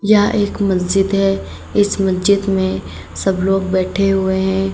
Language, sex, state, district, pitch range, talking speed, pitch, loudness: Hindi, female, Uttar Pradesh, Saharanpur, 185-195 Hz, 150 wpm, 195 Hz, -16 LUFS